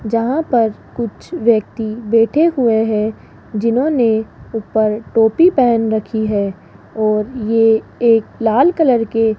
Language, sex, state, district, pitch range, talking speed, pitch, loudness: Hindi, female, Rajasthan, Jaipur, 220-240 Hz, 130 wpm, 225 Hz, -15 LUFS